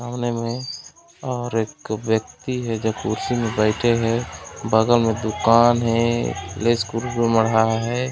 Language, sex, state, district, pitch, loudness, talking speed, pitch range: Chhattisgarhi, male, Chhattisgarh, Raigarh, 115 Hz, -21 LUFS, 135 wpm, 110-120 Hz